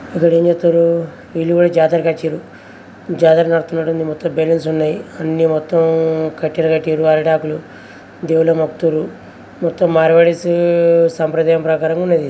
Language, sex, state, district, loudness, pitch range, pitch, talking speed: Telugu, male, Andhra Pradesh, Srikakulam, -15 LUFS, 160-170 Hz, 165 Hz, 120 wpm